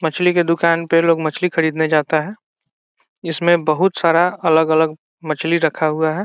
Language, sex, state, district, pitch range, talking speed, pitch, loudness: Hindi, male, Bihar, Saran, 160-175 Hz, 165 wpm, 165 Hz, -17 LUFS